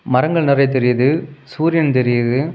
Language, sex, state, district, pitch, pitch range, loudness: Tamil, male, Tamil Nadu, Kanyakumari, 140 Hz, 125-155 Hz, -16 LUFS